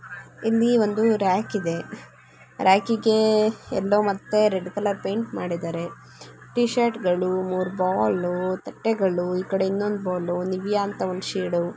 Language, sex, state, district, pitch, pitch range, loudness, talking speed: Kannada, female, Karnataka, Chamarajanagar, 190 Hz, 180-215 Hz, -23 LUFS, 130 wpm